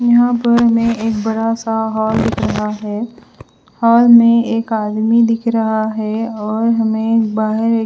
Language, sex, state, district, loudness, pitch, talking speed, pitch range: Hindi, female, Punjab, Fazilka, -15 LUFS, 225 Hz, 160 wpm, 220-230 Hz